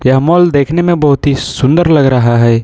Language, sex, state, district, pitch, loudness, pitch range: Hindi, male, Jharkhand, Ranchi, 140 Hz, -10 LUFS, 130-165 Hz